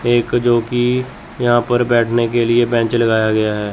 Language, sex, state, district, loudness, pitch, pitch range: Hindi, male, Chandigarh, Chandigarh, -15 LUFS, 120 Hz, 115-120 Hz